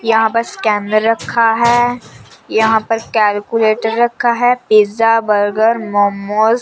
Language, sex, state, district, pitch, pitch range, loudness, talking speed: Hindi, female, Chandigarh, Chandigarh, 225 Hz, 215-230 Hz, -14 LUFS, 125 wpm